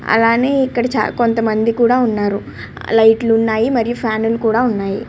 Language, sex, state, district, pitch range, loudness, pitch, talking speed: Telugu, female, Andhra Pradesh, Srikakulam, 220-240 Hz, -15 LUFS, 230 Hz, 130 wpm